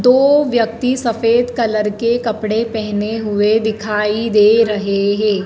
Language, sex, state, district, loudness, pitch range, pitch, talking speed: Hindi, female, Madhya Pradesh, Dhar, -15 LUFS, 210-230 Hz, 220 Hz, 130 wpm